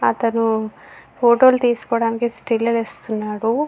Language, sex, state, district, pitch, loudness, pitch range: Telugu, female, Andhra Pradesh, Visakhapatnam, 230 Hz, -18 LUFS, 220-235 Hz